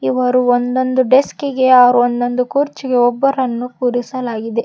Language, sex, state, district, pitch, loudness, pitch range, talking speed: Kannada, female, Karnataka, Koppal, 250 Hz, -15 LUFS, 245-260 Hz, 105 wpm